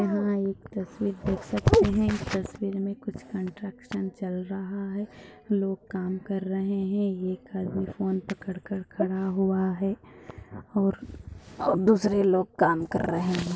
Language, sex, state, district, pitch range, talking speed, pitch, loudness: Hindi, female, Maharashtra, Dhule, 185-200 Hz, 145 wpm, 195 Hz, -28 LUFS